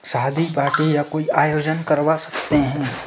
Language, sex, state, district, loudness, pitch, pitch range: Hindi, male, Madhya Pradesh, Bhopal, -19 LUFS, 150 Hz, 145-155 Hz